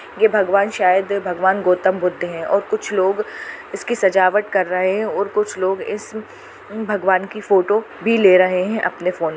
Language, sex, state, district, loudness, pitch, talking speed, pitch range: Hindi, female, Chhattisgarh, Bastar, -18 LUFS, 195 Hz, 185 wpm, 185-210 Hz